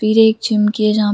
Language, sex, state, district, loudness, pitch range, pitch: Hindi, female, Jharkhand, Sahebganj, -14 LUFS, 210-220 Hz, 215 Hz